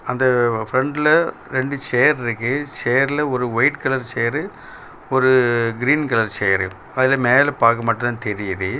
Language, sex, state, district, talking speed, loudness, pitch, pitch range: Tamil, male, Tamil Nadu, Kanyakumari, 135 wpm, -18 LUFS, 125 Hz, 115-135 Hz